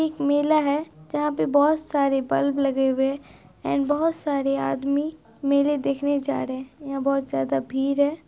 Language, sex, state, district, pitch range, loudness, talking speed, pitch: Hindi, female, Bihar, Araria, 265-290 Hz, -24 LUFS, 175 wpm, 280 Hz